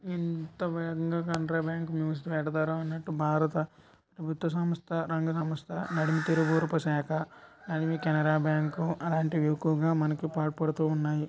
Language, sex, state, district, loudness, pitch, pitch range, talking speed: Telugu, male, Andhra Pradesh, Krishna, -30 LUFS, 160 Hz, 155-165 Hz, 115 wpm